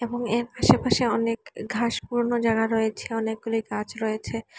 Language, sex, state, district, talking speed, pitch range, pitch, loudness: Bengali, female, Assam, Hailakandi, 145 wpm, 225-235 Hz, 230 Hz, -25 LUFS